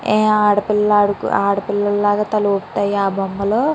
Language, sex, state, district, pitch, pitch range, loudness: Telugu, female, Andhra Pradesh, Chittoor, 205 Hz, 200-210 Hz, -17 LUFS